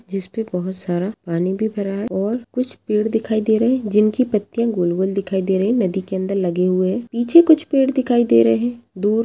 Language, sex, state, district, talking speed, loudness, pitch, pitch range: Hindi, female, Uttar Pradesh, Jalaun, 235 wpm, -19 LUFS, 210 Hz, 190-235 Hz